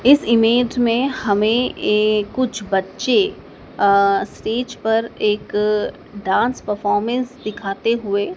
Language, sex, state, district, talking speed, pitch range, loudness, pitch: Hindi, male, Madhya Pradesh, Dhar, 110 wpm, 205-245 Hz, -19 LUFS, 215 Hz